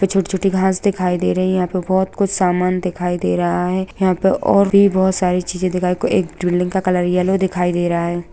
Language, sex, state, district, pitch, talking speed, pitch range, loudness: Hindi, female, Bihar, Saran, 185 Hz, 240 wpm, 180-190 Hz, -17 LUFS